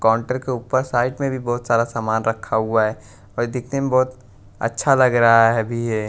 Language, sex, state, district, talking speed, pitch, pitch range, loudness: Hindi, male, Bihar, West Champaran, 215 wpm, 115 Hz, 110-130 Hz, -19 LUFS